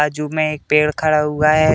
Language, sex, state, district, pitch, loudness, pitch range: Hindi, male, Uttar Pradesh, Deoria, 150 Hz, -17 LUFS, 150-155 Hz